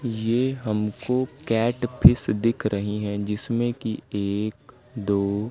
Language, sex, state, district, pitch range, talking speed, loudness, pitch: Hindi, male, Madhya Pradesh, Katni, 105-120 Hz, 120 wpm, -24 LUFS, 110 Hz